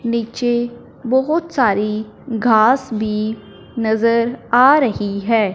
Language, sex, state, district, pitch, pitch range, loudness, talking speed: Hindi, male, Punjab, Fazilka, 230 Hz, 215-245 Hz, -17 LUFS, 95 wpm